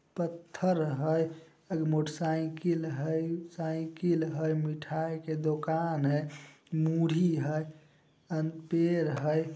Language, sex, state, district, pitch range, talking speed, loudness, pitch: Maithili, male, Bihar, Samastipur, 155-165 Hz, 100 wpm, -32 LUFS, 160 Hz